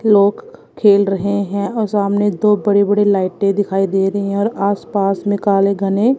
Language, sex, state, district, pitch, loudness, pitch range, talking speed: Hindi, female, Punjab, Kapurthala, 200 Hz, -16 LUFS, 195-205 Hz, 185 wpm